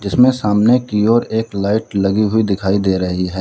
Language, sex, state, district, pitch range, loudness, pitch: Hindi, male, Uttar Pradesh, Lalitpur, 95-110 Hz, -15 LUFS, 105 Hz